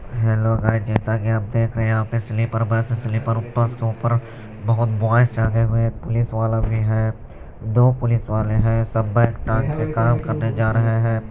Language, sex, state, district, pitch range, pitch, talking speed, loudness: Hindi, male, Chhattisgarh, Balrampur, 110-115 Hz, 115 Hz, 195 wpm, -20 LUFS